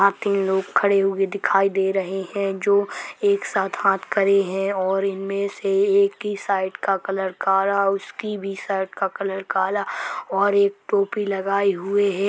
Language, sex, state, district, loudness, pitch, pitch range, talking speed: Hindi, female, Uttar Pradesh, Hamirpur, -22 LUFS, 195 Hz, 195-200 Hz, 175 wpm